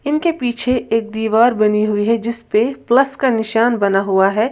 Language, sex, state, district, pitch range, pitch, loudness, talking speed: Hindi, female, Uttar Pradesh, Lalitpur, 215-250 Hz, 230 Hz, -16 LUFS, 200 wpm